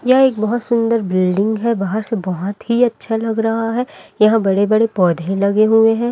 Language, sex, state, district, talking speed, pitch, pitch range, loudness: Hindi, female, Chhattisgarh, Raipur, 205 wpm, 225 Hz, 200-230 Hz, -16 LUFS